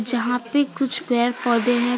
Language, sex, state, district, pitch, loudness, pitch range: Hindi, female, Jharkhand, Deoghar, 245 Hz, -20 LUFS, 240-255 Hz